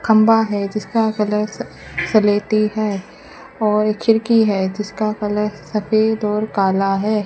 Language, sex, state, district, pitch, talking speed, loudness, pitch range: Hindi, female, Rajasthan, Bikaner, 215 Hz, 130 wpm, -18 LUFS, 210-220 Hz